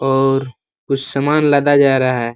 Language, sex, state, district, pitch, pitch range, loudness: Hindi, male, Uttar Pradesh, Ghazipur, 135 Hz, 130-140 Hz, -15 LUFS